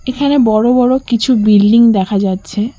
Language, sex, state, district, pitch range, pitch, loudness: Bengali, female, West Bengal, Cooch Behar, 205-255 Hz, 230 Hz, -11 LUFS